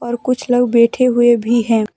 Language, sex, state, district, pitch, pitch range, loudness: Hindi, female, Jharkhand, Deoghar, 240 Hz, 235-245 Hz, -14 LUFS